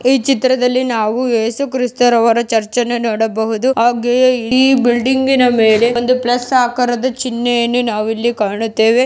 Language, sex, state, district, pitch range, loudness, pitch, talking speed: Kannada, female, Karnataka, Mysore, 230-255 Hz, -14 LUFS, 240 Hz, 125 wpm